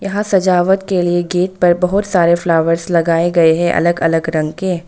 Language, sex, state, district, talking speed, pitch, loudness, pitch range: Hindi, female, Arunachal Pradesh, Longding, 195 wpm, 175 Hz, -14 LUFS, 165-185 Hz